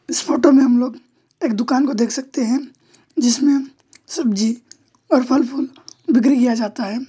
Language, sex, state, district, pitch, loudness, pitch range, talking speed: Hindi, male, West Bengal, Alipurduar, 270 Hz, -18 LUFS, 245-290 Hz, 160 wpm